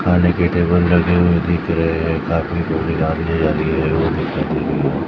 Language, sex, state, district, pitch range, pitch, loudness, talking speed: Hindi, male, Maharashtra, Mumbai Suburban, 80-85 Hz, 80 Hz, -17 LUFS, 140 wpm